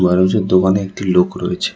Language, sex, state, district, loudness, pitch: Bengali, male, West Bengal, Cooch Behar, -15 LUFS, 95 Hz